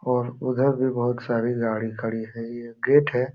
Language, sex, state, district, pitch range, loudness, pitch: Hindi, male, Uttar Pradesh, Jalaun, 115-130 Hz, -24 LUFS, 120 Hz